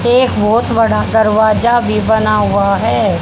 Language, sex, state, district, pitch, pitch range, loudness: Hindi, female, Haryana, Jhajjar, 220 Hz, 210-230 Hz, -12 LUFS